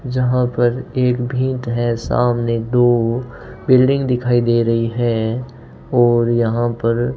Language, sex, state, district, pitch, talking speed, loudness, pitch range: Hindi, male, Rajasthan, Bikaner, 120 Hz, 135 wpm, -17 LUFS, 120-125 Hz